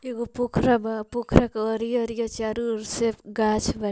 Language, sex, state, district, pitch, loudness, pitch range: Bhojpuri, female, Bihar, Muzaffarpur, 230 Hz, -25 LUFS, 220-240 Hz